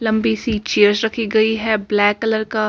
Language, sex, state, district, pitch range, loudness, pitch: Hindi, female, Delhi, New Delhi, 210-220 Hz, -17 LUFS, 220 Hz